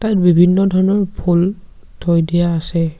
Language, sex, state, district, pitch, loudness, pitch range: Assamese, male, Assam, Sonitpur, 175 Hz, -15 LUFS, 170-190 Hz